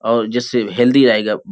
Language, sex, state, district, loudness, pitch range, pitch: Hindi, male, Uttar Pradesh, Hamirpur, -15 LUFS, 115-125 Hz, 120 Hz